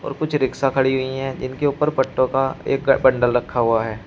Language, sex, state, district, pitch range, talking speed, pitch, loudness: Hindi, male, Uttar Pradesh, Shamli, 125-135 Hz, 205 wpm, 130 Hz, -20 LUFS